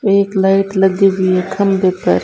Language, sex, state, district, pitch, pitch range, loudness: Hindi, female, Rajasthan, Bikaner, 195 Hz, 185-195 Hz, -14 LUFS